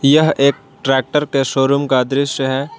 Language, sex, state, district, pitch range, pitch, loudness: Hindi, male, Jharkhand, Garhwa, 135-145 Hz, 140 Hz, -16 LUFS